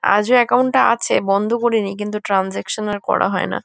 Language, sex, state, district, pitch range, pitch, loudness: Bengali, female, West Bengal, Kolkata, 200-235 Hz, 210 Hz, -17 LUFS